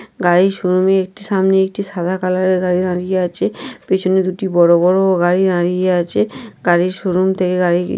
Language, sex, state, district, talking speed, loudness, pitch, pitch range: Bengali, female, West Bengal, North 24 Parganas, 175 wpm, -16 LUFS, 185 Hz, 180-190 Hz